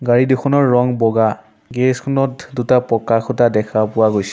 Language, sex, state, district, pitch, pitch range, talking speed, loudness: Assamese, male, Assam, Sonitpur, 125 Hz, 115-130 Hz, 165 wpm, -16 LUFS